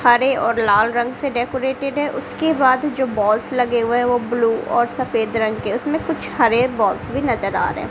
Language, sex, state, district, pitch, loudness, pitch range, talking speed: Hindi, female, Bihar, Kaimur, 245 Hz, -19 LUFS, 230-265 Hz, 220 wpm